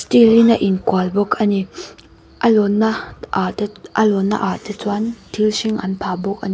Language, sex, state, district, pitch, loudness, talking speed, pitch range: Mizo, female, Mizoram, Aizawl, 210 Hz, -17 LUFS, 200 wpm, 195-220 Hz